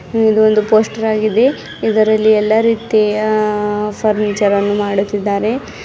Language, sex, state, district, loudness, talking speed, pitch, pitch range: Kannada, female, Karnataka, Bidar, -14 LUFS, 115 wpm, 215 Hz, 210-220 Hz